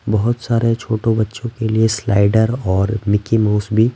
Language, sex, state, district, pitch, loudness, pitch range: Hindi, male, Bihar, Patna, 110 Hz, -17 LUFS, 105-115 Hz